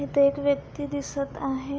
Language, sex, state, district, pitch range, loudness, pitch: Marathi, female, Maharashtra, Pune, 275-285 Hz, -27 LUFS, 280 Hz